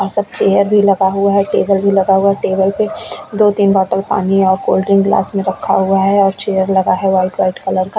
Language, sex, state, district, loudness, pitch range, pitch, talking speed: Hindi, female, Goa, North and South Goa, -13 LUFS, 190-200 Hz, 195 Hz, 240 wpm